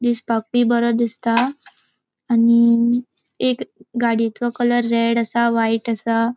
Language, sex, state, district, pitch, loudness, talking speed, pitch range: Konkani, female, Goa, North and South Goa, 235 Hz, -19 LUFS, 115 wpm, 230-240 Hz